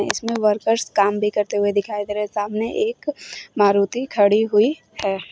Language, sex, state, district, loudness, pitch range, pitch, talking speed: Hindi, female, Uttar Pradesh, Shamli, -20 LUFS, 205-230 Hz, 210 Hz, 180 wpm